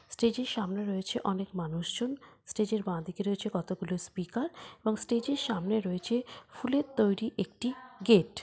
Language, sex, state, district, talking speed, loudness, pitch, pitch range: Bengali, female, West Bengal, Paschim Medinipur, 165 wpm, -32 LUFS, 215 Hz, 190-245 Hz